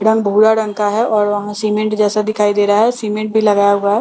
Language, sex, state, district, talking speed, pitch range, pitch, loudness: Hindi, female, Bihar, Katihar, 315 wpm, 205-215 Hz, 210 Hz, -14 LUFS